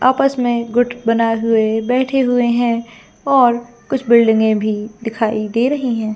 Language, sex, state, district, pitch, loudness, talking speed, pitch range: Hindi, female, Jharkhand, Jamtara, 235 Hz, -16 LUFS, 155 wpm, 225-245 Hz